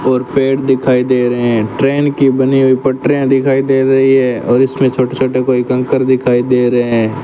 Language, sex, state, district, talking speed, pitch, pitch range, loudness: Hindi, male, Rajasthan, Bikaner, 205 wpm, 130 Hz, 125-135 Hz, -12 LUFS